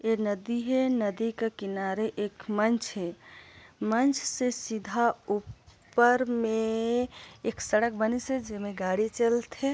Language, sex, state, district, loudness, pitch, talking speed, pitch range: Hindi, female, Chhattisgarh, Sarguja, -29 LUFS, 225 Hz, 130 wpm, 210-240 Hz